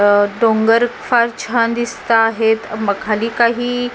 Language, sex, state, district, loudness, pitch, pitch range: Marathi, female, Maharashtra, Mumbai Suburban, -16 LUFS, 230 Hz, 220-235 Hz